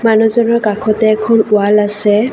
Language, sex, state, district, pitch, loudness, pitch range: Assamese, female, Assam, Kamrup Metropolitan, 215 Hz, -12 LUFS, 210-225 Hz